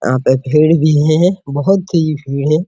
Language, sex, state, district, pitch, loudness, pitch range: Hindi, male, Bihar, Araria, 155 Hz, -13 LUFS, 140-165 Hz